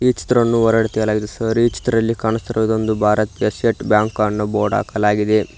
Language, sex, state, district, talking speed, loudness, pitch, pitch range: Kannada, male, Karnataka, Koppal, 160 wpm, -17 LUFS, 110 Hz, 105-115 Hz